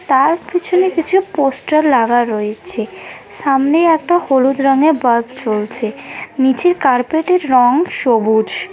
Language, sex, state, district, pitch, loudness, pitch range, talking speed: Bengali, female, West Bengal, Dakshin Dinajpur, 275 Hz, -14 LUFS, 245-335 Hz, 110 wpm